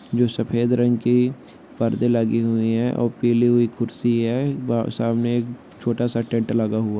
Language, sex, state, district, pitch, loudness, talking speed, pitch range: Hindi, male, Jharkhand, Jamtara, 120 Hz, -21 LUFS, 180 wpm, 115-120 Hz